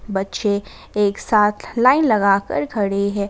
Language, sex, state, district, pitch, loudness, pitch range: Hindi, female, Jharkhand, Garhwa, 205 Hz, -18 LUFS, 200-215 Hz